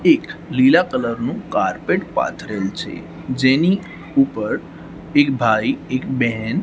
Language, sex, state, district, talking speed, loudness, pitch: Gujarati, male, Gujarat, Gandhinagar, 115 wpm, -19 LUFS, 145 Hz